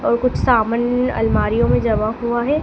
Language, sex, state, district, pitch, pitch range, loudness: Hindi, female, Madhya Pradesh, Dhar, 240 Hz, 230-250 Hz, -18 LUFS